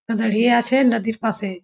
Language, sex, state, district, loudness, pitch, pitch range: Bengali, female, West Bengal, Jhargram, -19 LUFS, 225 Hz, 215-240 Hz